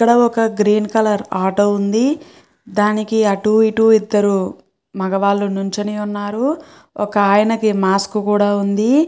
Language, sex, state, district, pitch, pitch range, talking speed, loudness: Telugu, female, Andhra Pradesh, Krishna, 210 Hz, 200-220 Hz, 120 wpm, -16 LUFS